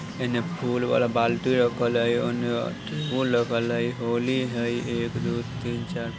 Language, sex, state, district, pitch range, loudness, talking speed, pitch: Bajjika, male, Bihar, Vaishali, 115-125 Hz, -26 LUFS, 125 wpm, 120 Hz